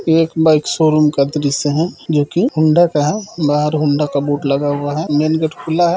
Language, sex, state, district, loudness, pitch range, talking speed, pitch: Hindi, male, Chhattisgarh, Rajnandgaon, -15 LUFS, 145-160 Hz, 210 wpm, 150 Hz